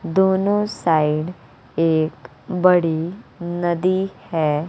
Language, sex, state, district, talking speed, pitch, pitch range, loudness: Hindi, female, Bihar, West Champaran, 75 wpm, 170 Hz, 155-185 Hz, -20 LUFS